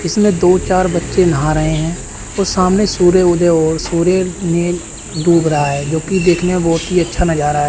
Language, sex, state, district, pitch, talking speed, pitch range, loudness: Hindi, male, Chandigarh, Chandigarh, 175 Hz, 185 wpm, 160-180 Hz, -14 LUFS